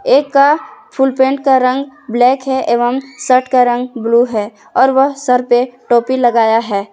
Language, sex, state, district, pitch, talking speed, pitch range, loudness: Hindi, female, Jharkhand, Garhwa, 255 Hz, 175 wpm, 240-270 Hz, -13 LUFS